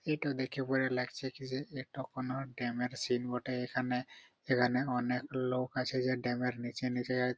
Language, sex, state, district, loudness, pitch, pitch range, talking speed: Bengali, male, West Bengal, Purulia, -35 LUFS, 125 Hz, 125-130 Hz, 170 wpm